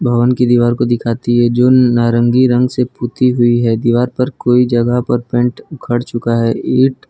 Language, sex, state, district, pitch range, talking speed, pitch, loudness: Hindi, male, Gujarat, Valsad, 120-125 Hz, 195 wpm, 120 Hz, -13 LUFS